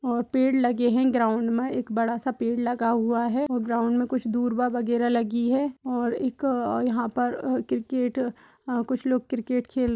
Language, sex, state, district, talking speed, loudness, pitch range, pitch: Hindi, female, Bihar, Purnia, 195 wpm, -25 LUFS, 235-255 Hz, 245 Hz